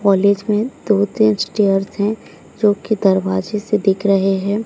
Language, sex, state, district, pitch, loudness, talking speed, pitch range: Hindi, female, Odisha, Sambalpur, 200 Hz, -17 LUFS, 155 wpm, 195-210 Hz